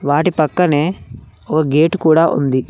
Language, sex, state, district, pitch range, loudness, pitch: Telugu, male, Telangana, Mahabubabad, 145-165 Hz, -15 LUFS, 155 Hz